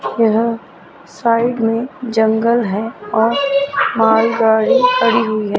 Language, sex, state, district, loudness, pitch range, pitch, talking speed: Hindi, female, Chandigarh, Chandigarh, -15 LUFS, 220-240 Hz, 230 Hz, 105 wpm